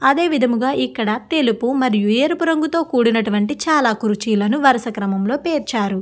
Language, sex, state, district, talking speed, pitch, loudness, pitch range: Telugu, female, Andhra Pradesh, Guntur, 140 wpm, 245 Hz, -18 LUFS, 215-290 Hz